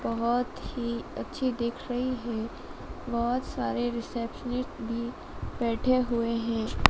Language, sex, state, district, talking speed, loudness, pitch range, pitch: Hindi, female, Madhya Pradesh, Dhar, 115 wpm, -30 LUFS, 230-250 Hz, 235 Hz